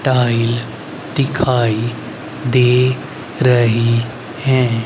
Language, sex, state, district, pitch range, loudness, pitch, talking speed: Hindi, male, Haryana, Rohtak, 115-130 Hz, -16 LUFS, 125 Hz, 60 wpm